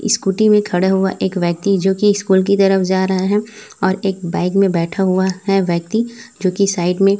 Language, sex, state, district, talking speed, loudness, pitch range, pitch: Hindi, female, Chhattisgarh, Raipur, 215 wpm, -16 LUFS, 185-200 Hz, 190 Hz